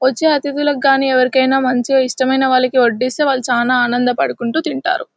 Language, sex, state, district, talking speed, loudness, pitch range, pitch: Telugu, female, Telangana, Nalgonda, 140 wpm, -15 LUFS, 250-280 Hz, 260 Hz